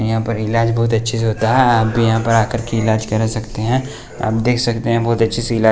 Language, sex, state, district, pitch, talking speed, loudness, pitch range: Hindi, male, Bihar, West Champaran, 115 Hz, 285 wpm, -17 LUFS, 110-115 Hz